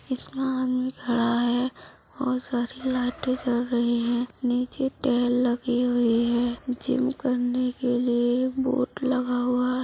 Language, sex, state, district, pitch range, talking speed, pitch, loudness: Hindi, female, Uttar Pradesh, Budaun, 245-255 Hz, 135 wpm, 250 Hz, -25 LUFS